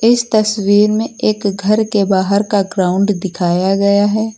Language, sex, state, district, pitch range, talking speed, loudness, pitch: Hindi, female, Uttar Pradesh, Lucknow, 195-215 Hz, 165 wpm, -14 LUFS, 205 Hz